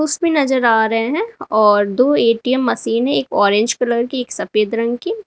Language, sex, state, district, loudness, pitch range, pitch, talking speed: Hindi, female, Uttar Pradesh, Lalitpur, -16 LUFS, 225-265 Hz, 235 Hz, 205 wpm